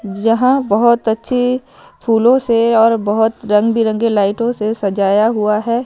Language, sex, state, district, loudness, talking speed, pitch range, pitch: Hindi, female, Himachal Pradesh, Shimla, -14 LUFS, 135 wpm, 210-235 Hz, 225 Hz